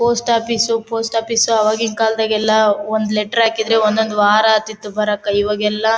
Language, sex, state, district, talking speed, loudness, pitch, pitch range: Kannada, female, Karnataka, Bellary, 160 wpm, -16 LUFS, 220 Hz, 215-225 Hz